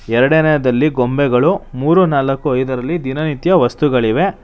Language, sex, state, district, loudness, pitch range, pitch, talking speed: Kannada, male, Karnataka, Bangalore, -15 LUFS, 125-155 Hz, 135 Hz, 95 wpm